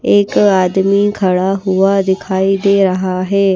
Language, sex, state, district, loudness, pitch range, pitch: Hindi, female, Himachal Pradesh, Shimla, -13 LUFS, 185-195 Hz, 190 Hz